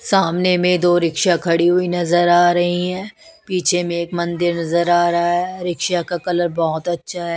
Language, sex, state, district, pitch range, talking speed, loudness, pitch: Hindi, female, Bihar, West Champaran, 170-180 Hz, 195 wpm, -17 LUFS, 175 Hz